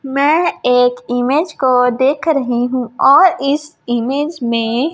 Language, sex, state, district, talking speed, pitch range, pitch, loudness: Hindi, female, Chhattisgarh, Raipur, 135 wpm, 245-295 Hz, 265 Hz, -14 LUFS